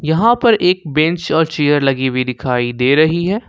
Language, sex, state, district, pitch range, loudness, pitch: Hindi, male, Jharkhand, Ranchi, 135-180 Hz, -14 LUFS, 155 Hz